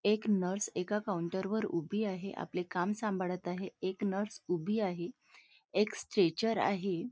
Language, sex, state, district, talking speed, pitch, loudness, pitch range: Marathi, female, Maharashtra, Nagpur, 160 wpm, 195 Hz, -35 LUFS, 180-210 Hz